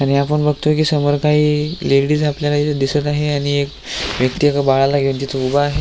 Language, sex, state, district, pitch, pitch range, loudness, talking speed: Marathi, male, Maharashtra, Aurangabad, 145 Hz, 140-150 Hz, -16 LUFS, 205 wpm